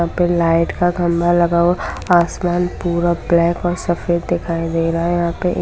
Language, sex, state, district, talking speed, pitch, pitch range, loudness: Hindi, female, Bihar, Darbhanga, 190 wpm, 175 Hz, 170-175 Hz, -17 LUFS